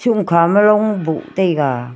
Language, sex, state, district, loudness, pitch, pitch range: Wancho, female, Arunachal Pradesh, Longding, -15 LUFS, 185 Hz, 160-210 Hz